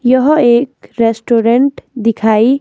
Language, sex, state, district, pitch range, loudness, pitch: Hindi, female, Himachal Pradesh, Shimla, 230-260 Hz, -12 LUFS, 240 Hz